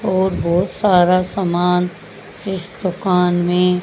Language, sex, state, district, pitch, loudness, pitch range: Hindi, female, Haryana, Jhajjar, 180 Hz, -17 LUFS, 180-190 Hz